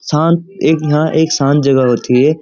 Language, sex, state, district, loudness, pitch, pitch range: Hindi, male, Uttarakhand, Uttarkashi, -13 LUFS, 150 Hz, 135-160 Hz